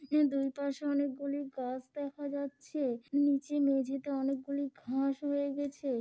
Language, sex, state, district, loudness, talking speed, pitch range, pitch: Bengali, female, West Bengal, Dakshin Dinajpur, -34 LUFS, 130 wpm, 270-285 Hz, 280 Hz